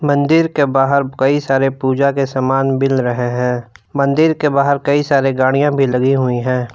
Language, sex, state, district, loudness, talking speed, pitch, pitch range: Hindi, male, Jharkhand, Palamu, -15 LUFS, 185 wpm, 135 Hz, 130-140 Hz